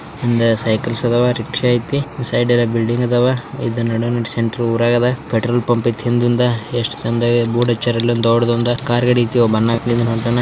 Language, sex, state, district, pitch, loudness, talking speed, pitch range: Kannada, male, Karnataka, Bijapur, 120 Hz, -16 LUFS, 80 wpm, 115-120 Hz